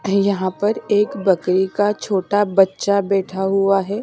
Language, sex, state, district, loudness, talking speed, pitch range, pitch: Hindi, female, Maharashtra, Mumbai Suburban, -18 LUFS, 150 wpm, 190-205 Hz, 195 Hz